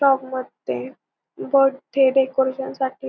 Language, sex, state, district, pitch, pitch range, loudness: Marathi, female, Maharashtra, Pune, 265 Hz, 260-270 Hz, -21 LUFS